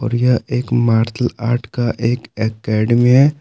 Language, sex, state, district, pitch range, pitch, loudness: Hindi, male, Jharkhand, Palamu, 115-125 Hz, 120 Hz, -16 LUFS